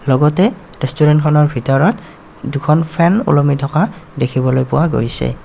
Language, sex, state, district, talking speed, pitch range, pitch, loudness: Assamese, male, Assam, Kamrup Metropolitan, 110 wpm, 135-165 Hz, 150 Hz, -14 LUFS